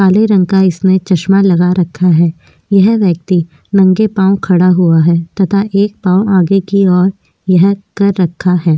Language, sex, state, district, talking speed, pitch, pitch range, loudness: Hindi, female, Maharashtra, Aurangabad, 170 wpm, 190 Hz, 180-195 Hz, -11 LUFS